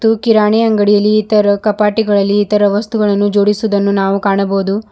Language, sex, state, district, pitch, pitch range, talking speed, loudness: Kannada, female, Karnataka, Bidar, 205 Hz, 200-215 Hz, 110 wpm, -12 LUFS